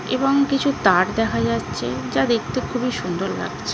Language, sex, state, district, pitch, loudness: Bengali, female, West Bengal, North 24 Parganas, 210 Hz, -21 LUFS